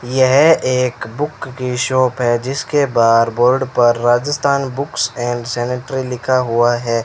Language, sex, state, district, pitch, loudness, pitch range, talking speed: Hindi, male, Rajasthan, Bikaner, 125 Hz, -16 LUFS, 120-135 Hz, 145 wpm